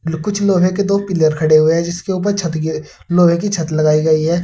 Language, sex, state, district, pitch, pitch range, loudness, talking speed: Hindi, male, Uttar Pradesh, Saharanpur, 170 Hz, 155-190 Hz, -15 LUFS, 245 wpm